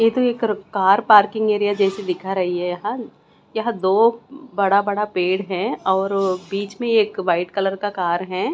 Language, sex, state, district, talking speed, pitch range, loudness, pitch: Hindi, female, Chandigarh, Chandigarh, 185 wpm, 185-215 Hz, -20 LUFS, 200 Hz